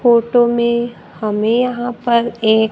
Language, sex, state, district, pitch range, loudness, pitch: Hindi, female, Maharashtra, Gondia, 220-240 Hz, -16 LUFS, 235 Hz